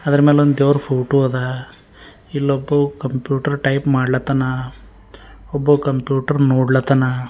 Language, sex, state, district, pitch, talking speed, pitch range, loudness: Kannada, male, Karnataka, Bidar, 135 Hz, 105 wpm, 130-145 Hz, -17 LUFS